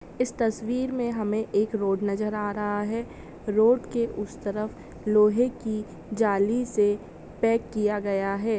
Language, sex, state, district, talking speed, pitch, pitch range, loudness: Hindi, female, Andhra Pradesh, Chittoor, 140 wpm, 215 Hz, 205-230 Hz, -26 LUFS